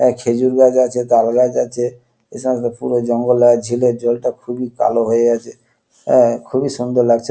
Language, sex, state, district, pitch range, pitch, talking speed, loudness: Bengali, male, West Bengal, Kolkata, 120-125 Hz, 120 Hz, 180 wpm, -16 LUFS